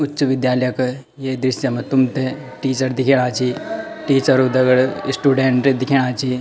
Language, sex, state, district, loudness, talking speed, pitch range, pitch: Garhwali, male, Uttarakhand, Tehri Garhwal, -18 LUFS, 170 wpm, 130-135 Hz, 130 Hz